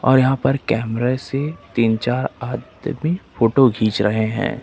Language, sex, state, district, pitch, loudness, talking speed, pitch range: Hindi, male, Jharkhand, Ranchi, 120 Hz, -19 LUFS, 155 wpm, 110-135 Hz